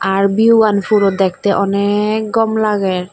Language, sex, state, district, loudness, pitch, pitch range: Chakma, female, Tripura, Dhalai, -14 LUFS, 205 Hz, 195-215 Hz